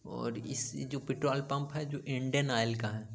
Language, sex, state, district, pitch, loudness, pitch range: Hindi, male, Bihar, Gaya, 135 Hz, -35 LUFS, 115-140 Hz